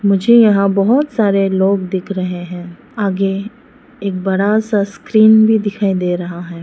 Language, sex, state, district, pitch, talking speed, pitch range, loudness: Hindi, female, Arunachal Pradesh, Lower Dibang Valley, 200 Hz, 165 wpm, 190-220 Hz, -14 LUFS